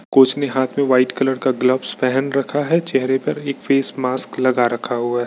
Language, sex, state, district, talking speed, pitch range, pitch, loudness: Hindi, male, Bihar, Bhagalpur, 230 wpm, 125-140 Hz, 130 Hz, -18 LUFS